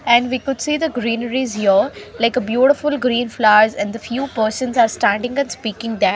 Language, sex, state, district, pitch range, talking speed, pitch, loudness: English, female, Haryana, Rohtak, 220-260 Hz, 195 wpm, 240 Hz, -17 LUFS